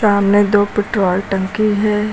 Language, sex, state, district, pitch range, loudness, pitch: Hindi, female, Uttar Pradesh, Lucknow, 200-210 Hz, -15 LUFS, 205 Hz